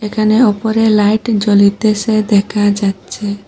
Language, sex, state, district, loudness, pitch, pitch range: Bengali, female, Assam, Hailakandi, -13 LUFS, 210 Hz, 205-220 Hz